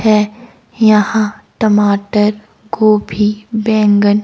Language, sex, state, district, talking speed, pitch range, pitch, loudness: Hindi, female, Himachal Pradesh, Shimla, 70 wpm, 210-220 Hz, 210 Hz, -13 LUFS